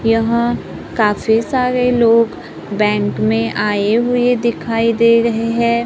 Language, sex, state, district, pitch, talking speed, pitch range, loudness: Hindi, female, Maharashtra, Gondia, 230 Hz, 125 wpm, 210-235 Hz, -15 LUFS